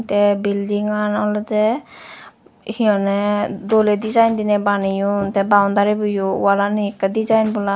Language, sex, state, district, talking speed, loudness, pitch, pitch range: Chakma, female, Tripura, West Tripura, 130 wpm, -18 LUFS, 205 Hz, 200-210 Hz